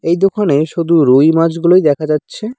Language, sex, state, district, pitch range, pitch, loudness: Bengali, male, West Bengal, Cooch Behar, 150-180 Hz, 165 Hz, -12 LUFS